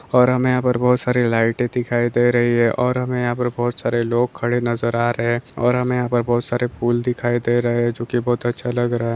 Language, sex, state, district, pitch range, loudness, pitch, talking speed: Hindi, male, Maharashtra, Solapur, 120-125 Hz, -19 LUFS, 120 Hz, 255 wpm